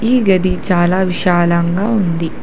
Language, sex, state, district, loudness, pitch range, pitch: Telugu, female, Telangana, Hyderabad, -14 LUFS, 175-190 Hz, 180 Hz